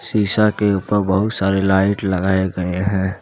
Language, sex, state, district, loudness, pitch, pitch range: Hindi, male, Jharkhand, Deoghar, -18 LUFS, 95 Hz, 95-105 Hz